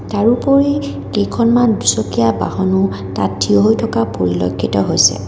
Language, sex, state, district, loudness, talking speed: Assamese, female, Assam, Kamrup Metropolitan, -15 LUFS, 115 wpm